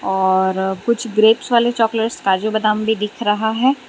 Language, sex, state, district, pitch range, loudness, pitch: Hindi, female, Gujarat, Valsad, 205-235 Hz, -17 LUFS, 220 Hz